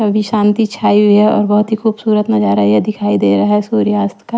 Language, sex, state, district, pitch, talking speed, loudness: Hindi, female, Chhattisgarh, Raipur, 205 Hz, 230 wpm, -13 LUFS